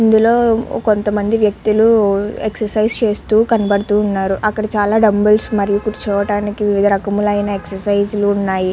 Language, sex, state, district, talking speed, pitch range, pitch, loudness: Telugu, male, Andhra Pradesh, Guntur, 110 wpm, 205-215 Hz, 210 Hz, -15 LUFS